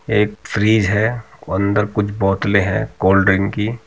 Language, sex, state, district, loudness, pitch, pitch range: Hindi, male, Uttar Pradesh, Muzaffarnagar, -17 LUFS, 105 Hz, 100-110 Hz